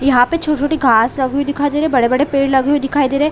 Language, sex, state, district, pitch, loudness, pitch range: Hindi, female, Chhattisgarh, Rajnandgaon, 280 Hz, -15 LUFS, 265-290 Hz